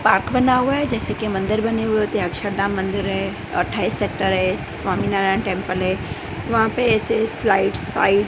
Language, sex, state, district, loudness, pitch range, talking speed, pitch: Hindi, female, Gujarat, Gandhinagar, -20 LUFS, 195-225 Hz, 165 wpm, 205 Hz